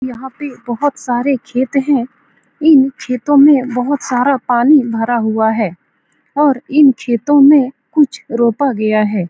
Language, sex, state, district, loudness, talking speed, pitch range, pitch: Hindi, female, Bihar, Saran, -13 LUFS, 160 wpm, 240-285 Hz, 260 Hz